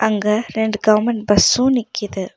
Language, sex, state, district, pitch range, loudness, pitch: Tamil, female, Tamil Nadu, Nilgiris, 210-225 Hz, -17 LUFS, 215 Hz